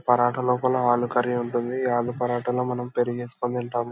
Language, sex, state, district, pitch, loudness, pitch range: Telugu, male, Andhra Pradesh, Anantapur, 125 Hz, -25 LUFS, 120-125 Hz